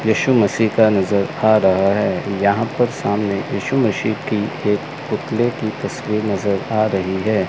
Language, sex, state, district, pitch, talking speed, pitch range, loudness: Hindi, male, Chandigarh, Chandigarh, 105 Hz, 170 wpm, 100-110 Hz, -18 LUFS